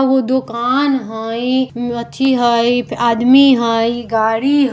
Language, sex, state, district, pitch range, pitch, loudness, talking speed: Bajjika, female, Bihar, Vaishali, 235-265 Hz, 240 Hz, -14 LUFS, 115 wpm